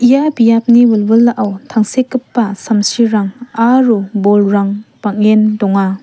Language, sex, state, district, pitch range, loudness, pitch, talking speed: Garo, female, Meghalaya, West Garo Hills, 205-240 Hz, -12 LUFS, 220 Hz, 90 wpm